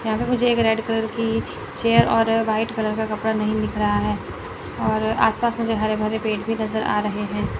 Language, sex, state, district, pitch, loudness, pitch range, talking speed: Hindi, female, Chandigarh, Chandigarh, 220 Hz, -21 LUFS, 210-225 Hz, 220 wpm